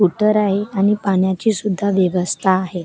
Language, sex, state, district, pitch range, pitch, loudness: Marathi, female, Maharashtra, Gondia, 185-205 Hz, 195 Hz, -17 LUFS